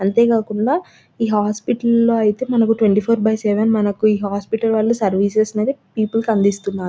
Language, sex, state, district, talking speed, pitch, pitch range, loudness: Telugu, female, Telangana, Nalgonda, 150 wpm, 220 Hz, 210-230 Hz, -17 LUFS